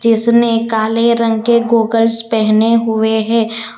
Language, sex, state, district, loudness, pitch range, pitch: Hindi, female, Gujarat, Valsad, -13 LUFS, 220-230 Hz, 230 Hz